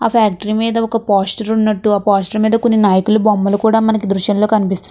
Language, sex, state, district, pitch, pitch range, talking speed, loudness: Telugu, female, Andhra Pradesh, Krishna, 215 Hz, 200-220 Hz, 195 wpm, -14 LUFS